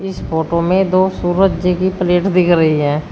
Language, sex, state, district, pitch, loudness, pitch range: Hindi, female, Uttar Pradesh, Shamli, 180 Hz, -15 LUFS, 170-185 Hz